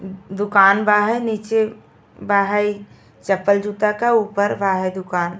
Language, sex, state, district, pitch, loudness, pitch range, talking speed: Bhojpuri, female, Uttar Pradesh, Ghazipur, 205 Hz, -18 LUFS, 195-210 Hz, 145 wpm